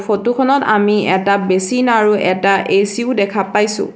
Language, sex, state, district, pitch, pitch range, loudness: Assamese, female, Assam, Sonitpur, 205 Hz, 195-230 Hz, -14 LUFS